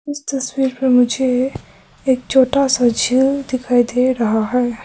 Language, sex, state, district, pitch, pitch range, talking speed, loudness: Hindi, female, Arunachal Pradesh, Papum Pare, 255 Hz, 245-265 Hz, 150 wpm, -16 LUFS